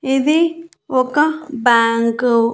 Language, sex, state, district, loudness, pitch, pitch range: Telugu, female, Andhra Pradesh, Annamaya, -16 LUFS, 265 Hz, 235-315 Hz